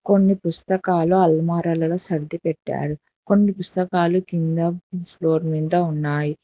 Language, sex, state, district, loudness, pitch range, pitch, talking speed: Telugu, female, Telangana, Hyderabad, -19 LUFS, 160-185 Hz, 170 Hz, 100 wpm